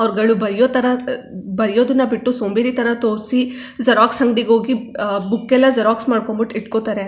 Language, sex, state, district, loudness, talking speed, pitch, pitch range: Kannada, female, Karnataka, Chamarajanagar, -17 LUFS, 135 wpm, 230 Hz, 220-250 Hz